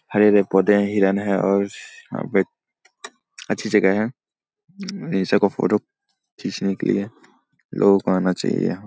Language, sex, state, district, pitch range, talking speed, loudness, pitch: Hindi, male, Bihar, Saharsa, 95-105 Hz, 140 wpm, -20 LUFS, 100 Hz